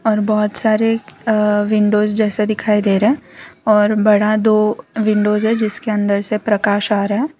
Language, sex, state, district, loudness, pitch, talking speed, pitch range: Hindi, female, Gujarat, Valsad, -16 LUFS, 215 Hz, 180 wpm, 210-220 Hz